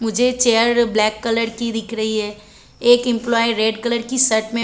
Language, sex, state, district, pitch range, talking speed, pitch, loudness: Hindi, female, Chhattisgarh, Bilaspur, 220-240 Hz, 195 wpm, 230 Hz, -17 LUFS